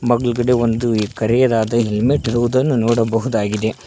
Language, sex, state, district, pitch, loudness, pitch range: Kannada, male, Karnataka, Koppal, 115 Hz, -17 LUFS, 110-120 Hz